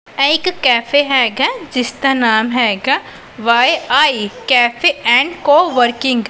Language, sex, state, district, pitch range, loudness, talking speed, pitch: Punjabi, female, Punjab, Pathankot, 240-285 Hz, -13 LUFS, 125 wpm, 260 Hz